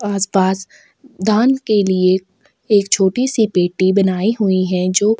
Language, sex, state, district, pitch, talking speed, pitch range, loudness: Hindi, female, Chhattisgarh, Sukma, 195 Hz, 150 wpm, 185-220 Hz, -16 LUFS